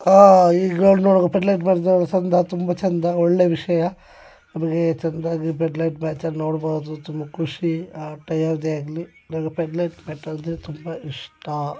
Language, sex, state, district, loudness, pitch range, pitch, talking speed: Kannada, male, Karnataka, Dakshina Kannada, -20 LUFS, 160-180 Hz, 165 Hz, 125 wpm